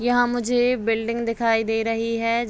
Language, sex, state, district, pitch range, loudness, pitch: Hindi, female, Bihar, Begusarai, 225-240 Hz, -22 LUFS, 230 Hz